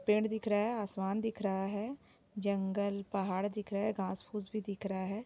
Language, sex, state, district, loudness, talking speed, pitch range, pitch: Hindi, female, Jharkhand, Sahebganj, -36 LUFS, 215 wpm, 195-210 Hz, 205 Hz